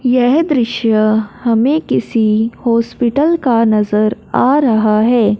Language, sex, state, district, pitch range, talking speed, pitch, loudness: Hindi, male, Punjab, Fazilka, 215-250 Hz, 110 wpm, 230 Hz, -13 LUFS